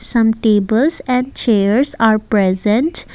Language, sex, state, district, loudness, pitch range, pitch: English, female, Assam, Kamrup Metropolitan, -15 LUFS, 210-255 Hz, 225 Hz